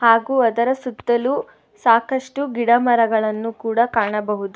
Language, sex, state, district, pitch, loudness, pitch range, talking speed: Kannada, female, Karnataka, Bangalore, 235 Hz, -19 LUFS, 225-250 Hz, 105 wpm